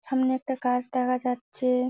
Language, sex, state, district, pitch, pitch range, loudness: Bengali, female, West Bengal, Jalpaiguri, 255 Hz, 250-260 Hz, -27 LUFS